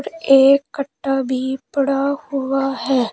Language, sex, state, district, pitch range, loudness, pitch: Hindi, female, Uttar Pradesh, Shamli, 265-275 Hz, -18 LUFS, 270 Hz